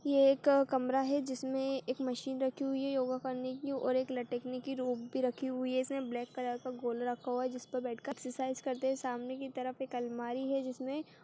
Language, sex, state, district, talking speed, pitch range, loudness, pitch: Hindi, female, Chhattisgarh, Kabirdham, 230 wpm, 250-270 Hz, -36 LUFS, 260 Hz